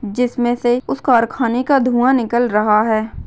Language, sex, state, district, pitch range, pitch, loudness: Hindi, female, Maharashtra, Solapur, 230-250 Hz, 240 Hz, -16 LUFS